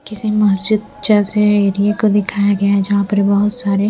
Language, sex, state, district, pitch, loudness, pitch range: Hindi, female, Bihar, Patna, 205 Hz, -15 LUFS, 200-210 Hz